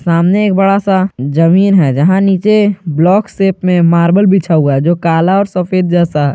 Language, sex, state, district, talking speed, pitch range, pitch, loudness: Hindi, male, Jharkhand, Garhwa, 190 wpm, 170-195 Hz, 180 Hz, -11 LUFS